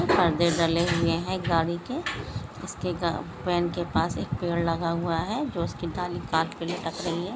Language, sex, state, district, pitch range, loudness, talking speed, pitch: Hindi, female, Andhra Pradesh, Anantapur, 165-175 Hz, -27 LUFS, 185 wpm, 170 Hz